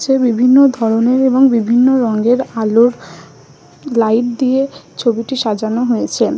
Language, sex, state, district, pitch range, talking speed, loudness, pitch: Bengali, female, West Bengal, Malda, 225-260 Hz, 120 wpm, -13 LUFS, 240 Hz